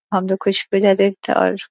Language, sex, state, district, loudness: Hindi, female, Uttar Pradesh, Gorakhpur, -17 LUFS